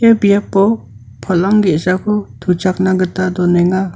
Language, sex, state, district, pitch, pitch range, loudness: Garo, male, Meghalaya, North Garo Hills, 185 Hz, 175-200 Hz, -14 LUFS